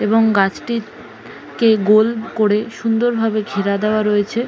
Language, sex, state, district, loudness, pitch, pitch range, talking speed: Bengali, female, West Bengal, Jalpaiguri, -17 LUFS, 220 Hz, 210-225 Hz, 120 wpm